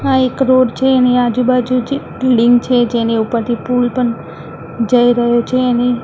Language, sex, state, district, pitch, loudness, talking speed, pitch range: Gujarati, female, Maharashtra, Mumbai Suburban, 245 Hz, -13 LUFS, 190 wpm, 235-255 Hz